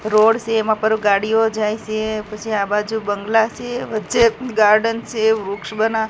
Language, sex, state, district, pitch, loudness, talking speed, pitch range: Gujarati, female, Gujarat, Gandhinagar, 220 Hz, -18 LUFS, 155 wpm, 215-225 Hz